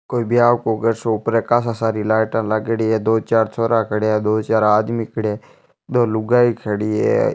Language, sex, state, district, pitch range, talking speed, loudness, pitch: Marwari, male, Rajasthan, Churu, 110-115 Hz, 205 wpm, -18 LUFS, 110 Hz